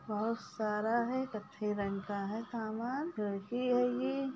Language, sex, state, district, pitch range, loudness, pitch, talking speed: Hindi, female, Chhattisgarh, Bilaspur, 210-245 Hz, -36 LUFS, 225 Hz, 125 wpm